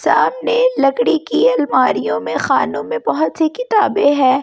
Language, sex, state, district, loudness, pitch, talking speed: Hindi, female, Delhi, New Delhi, -15 LUFS, 315 Hz, 165 wpm